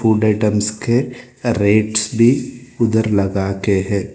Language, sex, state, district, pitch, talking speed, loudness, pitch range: Hindi, male, Telangana, Hyderabad, 110 Hz, 115 wpm, -17 LUFS, 100-120 Hz